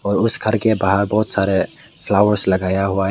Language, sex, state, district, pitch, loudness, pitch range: Hindi, male, Meghalaya, West Garo Hills, 100 Hz, -17 LUFS, 95-110 Hz